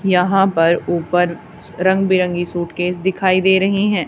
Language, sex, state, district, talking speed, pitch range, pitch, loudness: Hindi, female, Haryana, Charkhi Dadri, 145 wpm, 175-190 Hz, 180 Hz, -16 LUFS